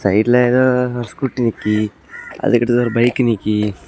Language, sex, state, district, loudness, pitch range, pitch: Tamil, male, Tamil Nadu, Kanyakumari, -16 LUFS, 105-125 Hz, 120 Hz